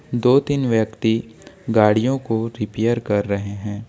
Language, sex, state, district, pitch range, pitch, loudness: Hindi, male, Jharkhand, Ranchi, 105-125 Hz, 115 Hz, -20 LUFS